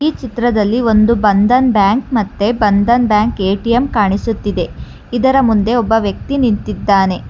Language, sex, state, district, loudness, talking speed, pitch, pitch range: Kannada, female, Karnataka, Bangalore, -14 LUFS, 125 wpm, 225 Hz, 205-240 Hz